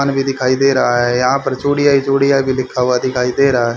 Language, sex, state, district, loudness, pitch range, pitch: Hindi, male, Haryana, Rohtak, -14 LUFS, 125-140 Hz, 130 Hz